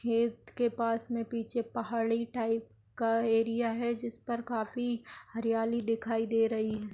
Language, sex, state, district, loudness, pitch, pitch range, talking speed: Hindi, female, Uttar Pradesh, Etah, -32 LUFS, 230 Hz, 225-235 Hz, 145 wpm